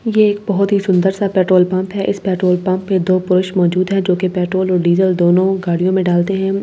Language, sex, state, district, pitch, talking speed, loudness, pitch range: Hindi, female, Delhi, New Delhi, 185 Hz, 255 wpm, -15 LUFS, 180-195 Hz